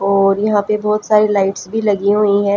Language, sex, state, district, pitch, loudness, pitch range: Hindi, female, Haryana, Jhajjar, 205 Hz, -15 LUFS, 200-210 Hz